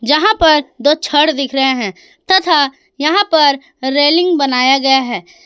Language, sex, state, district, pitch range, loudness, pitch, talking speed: Hindi, female, Jharkhand, Ranchi, 270-320 Hz, -12 LUFS, 290 Hz, 155 wpm